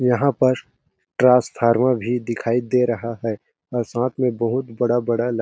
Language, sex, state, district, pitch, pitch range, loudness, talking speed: Hindi, male, Chhattisgarh, Balrampur, 120 Hz, 115-125 Hz, -20 LUFS, 165 wpm